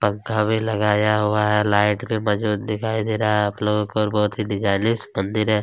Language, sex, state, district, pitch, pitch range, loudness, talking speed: Hindi, male, Chhattisgarh, Kabirdham, 105 Hz, 105-110 Hz, -21 LUFS, 225 wpm